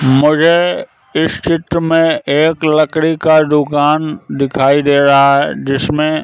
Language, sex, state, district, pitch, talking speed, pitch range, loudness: Hindi, male, Madhya Pradesh, Katni, 155 Hz, 125 wpm, 140-160 Hz, -12 LUFS